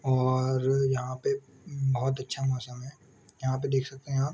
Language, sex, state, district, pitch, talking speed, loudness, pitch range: Hindi, male, Jharkhand, Sahebganj, 130 Hz, 180 wpm, -29 LUFS, 130-135 Hz